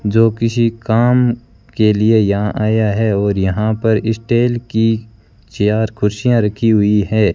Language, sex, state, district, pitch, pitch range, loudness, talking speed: Hindi, male, Rajasthan, Bikaner, 110 Hz, 105-115 Hz, -15 LUFS, 145 wpm